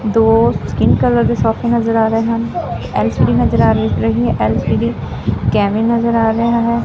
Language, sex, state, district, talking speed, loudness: Punjabi, female, Punjab, Fazilka, 185 wpm, -14 LUFS